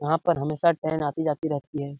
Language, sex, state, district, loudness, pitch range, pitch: Hindi, male, Bihar, Jamui, -26 LUFS, 145-160 Hz, 155 Hz